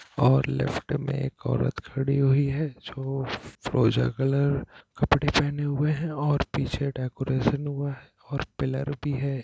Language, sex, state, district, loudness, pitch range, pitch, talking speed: Hindi, male, Bihar, Gopalganj, -27 LUFS, 135-145 Hz, 140 Hz, 150 wpm